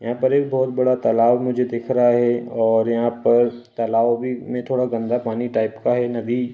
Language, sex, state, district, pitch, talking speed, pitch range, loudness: Hindi, male, Uttar Pradesh, Ghazipur, 120 Hz, 220 wpm, 115-125 Hz, -20 LUFS